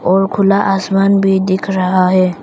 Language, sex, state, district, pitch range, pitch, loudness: Hindi, female, Arunachal Pradesh, Papum Pare, 185-195 Hz, 190 Hz, -13 LUFS